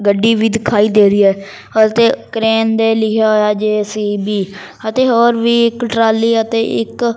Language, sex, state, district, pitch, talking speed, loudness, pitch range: Punjabi, male, Punjab, Fazilka, 220 Hz, 165 wpm, -13 LUFS, 210-230 Hz